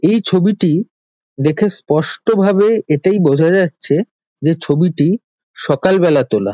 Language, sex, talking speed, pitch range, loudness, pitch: Bengali, male, 100 wpm, 150-200 Hz, -14 LUFS, 175 Hz